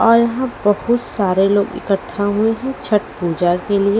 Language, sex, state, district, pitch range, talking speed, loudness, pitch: Hindi, female, Haryana, Rohtak, 195-230 Hz, 180 wpm, -17 LUFS, 205 Hz